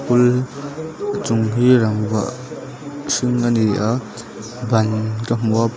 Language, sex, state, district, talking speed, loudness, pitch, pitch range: Mizo, male, Mizoram, Aizawl, 125 wpm, -19 LUFS, 120 Hz, 110-130 Hz